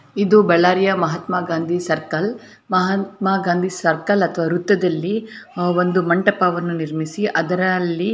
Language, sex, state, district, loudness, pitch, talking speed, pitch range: Kannada, female, Karnataka, Bellary, -19 LUFS, 180 Hz, 110 wpm, 170-195 Hz